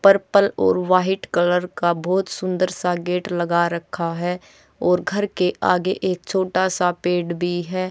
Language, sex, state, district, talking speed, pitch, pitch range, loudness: Hindi, female, Haryana, Charkhi Dadri, 165 wpm, 180 Hz, 175-185 Hz, -21 LUFS